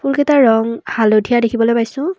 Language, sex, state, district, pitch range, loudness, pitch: Assamese, female, Assam, Kamrup Metropolitan, 230-275 Hz, -14 LUFS, 235 Hz